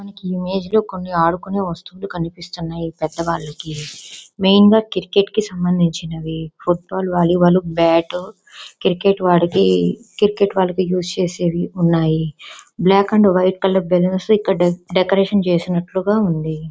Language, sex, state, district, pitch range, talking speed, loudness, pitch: Telugu, female, Andhra Pradesh, Visakhapatnam, 170-195 Hz, 110 wpm, -17 LUFS, 180 Hz